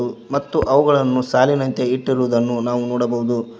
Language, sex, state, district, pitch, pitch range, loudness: Kannada, male, Karnataka, Koppal, 125 Hz, 120-135 Hz, -18 LUFS